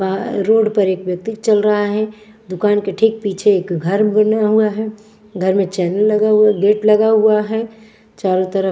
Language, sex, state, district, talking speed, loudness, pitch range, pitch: Hindi, female, Bihar, West Champaran, 190 wpm, -15 LUFS, 195-215 Hz, 210 Hz